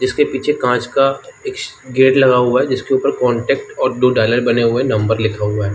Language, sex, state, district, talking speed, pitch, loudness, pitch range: Hindi, male, Jharkhand, Jamtara, 230 wpm, 130 Hz, -15 LUFS, 120-135 Hz